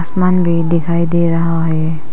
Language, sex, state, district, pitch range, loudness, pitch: Hindi, female, Arunachal Pradesh, Papum Pare, 165-170 Hz, -15 LUFS, 170 Hz